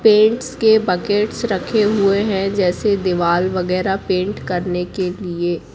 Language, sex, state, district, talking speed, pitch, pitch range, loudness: Hindi, female, Madhya Pradesh, Katni, 135 wpm, 190 Hz, 180-210 Hz, -18 LUFS